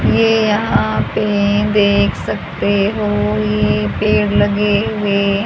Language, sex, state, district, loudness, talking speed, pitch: Hindi, female, Haryana, Charkhi Dadri, -15 LUFS, 110 wpm, 200 Hz